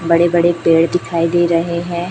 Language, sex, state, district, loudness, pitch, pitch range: Hindi, female, Chhattisgarh, Raipur, -15 LUFS, 170 Hz, 165-175 Hz